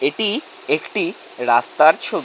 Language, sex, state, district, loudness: Bengali, male, West Bengal, North 24 Parganas, -18 LUFS